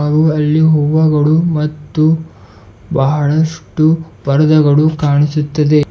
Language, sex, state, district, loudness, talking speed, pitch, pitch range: Kannada, male, Karnataka, Bidar, -13 LUFS, 70 wpm, 150 Hz, 145-155 Hz